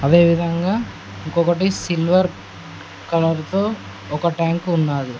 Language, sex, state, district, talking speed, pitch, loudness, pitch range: Telugu, male, Telangana, Mahabubabad, 90 wpm, 170 Hz, -19 LUFS, 165-180 Hz